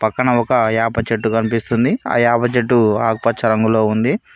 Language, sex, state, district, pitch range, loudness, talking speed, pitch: Telugu, male, Telangana, Mahabubabad, 110-120 Hz, -16 LUFS, 165 wpm, 115 Hz